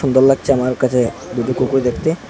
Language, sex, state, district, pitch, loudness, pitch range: Bengali, male, Assam, Hailakandi, 130 Hz, -16 LUFS, 125-135 Hz